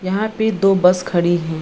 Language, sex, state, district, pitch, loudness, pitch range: Hindi, female, Bihar, Gaya, 185 Hz, -16 LUFS, 175-200 Hz